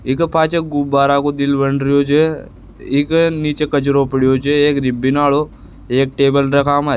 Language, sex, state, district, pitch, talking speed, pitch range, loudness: Marwari, male, Rajasthan, Nagaur, 140 Hz, 180 wpm, 140-145 Hz, -15 LUFS